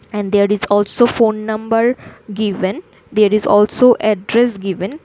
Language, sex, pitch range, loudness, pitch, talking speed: English, female, 205-230 Hz, -15 LUFS, 210 Hz, 145 wpm